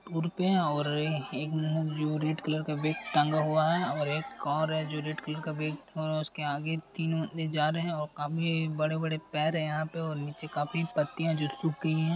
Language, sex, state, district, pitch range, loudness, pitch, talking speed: Hindi, male, Uttar Pradesh, Hamirpur, 150-160 Hz, -31 LUFS, 155 Hz, 220 wpm